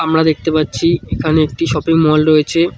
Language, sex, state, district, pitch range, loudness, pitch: Bengali, male, West Bengal, Cooch Behar, 150-160 Hz, -14 LUFS, 155 Hz